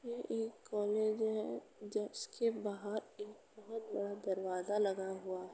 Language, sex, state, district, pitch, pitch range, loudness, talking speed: Hindi, female, Uttar Pradesh, Jalaun, 210 Hz, 200-220 Hz, -39 LUFS, 140 wpm